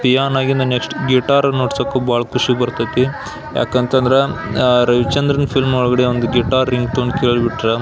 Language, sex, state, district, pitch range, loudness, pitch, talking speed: Kannada, male, Karnataka, Belgaum, 120-135 Hz, -16 LUFS, 125 Hz, 160 wpm